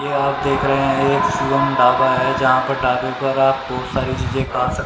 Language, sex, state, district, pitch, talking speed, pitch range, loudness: Hindi, male, Haryana, Rohtak, 130 Hz, 235 wpm, 125-135 Hz, -17 LUFS